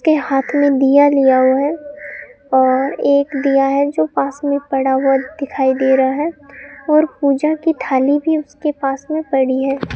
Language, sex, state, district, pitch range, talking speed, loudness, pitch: Hindi, female, Rajasthan, Bikaner, 270-290 Hz, 180 wpm, -15 LUFS, 275 Hz